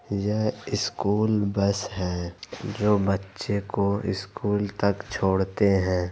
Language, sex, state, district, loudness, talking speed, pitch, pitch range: Hindi, male, Bihar, Madhepura, -26 LUFS, 110 wpm, 100 Hz, 95-105 Hz